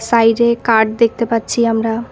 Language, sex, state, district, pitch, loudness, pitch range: Bengali, female, West Bengal, Cooch Behar, 230 Hz, -14 LUFS, 225-235 Hz